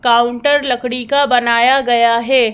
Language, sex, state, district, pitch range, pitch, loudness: Hindi, male, Madhya Pradesh, Bhopal, 235-265 Hz, 245 Hz, -13 LUFS